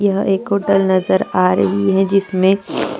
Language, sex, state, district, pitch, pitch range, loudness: Hindi, female, Chhattisgarh, Jashpur, 195 Hz, 190-200 Hz, -15 LUFS